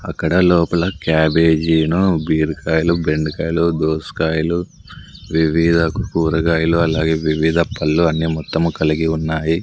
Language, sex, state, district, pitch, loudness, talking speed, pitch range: Telugu, male, Andhra Pradesh, Sri Satya Sai, 80 Hz, -17 LUFS, 95 wpm, 80-85 Hz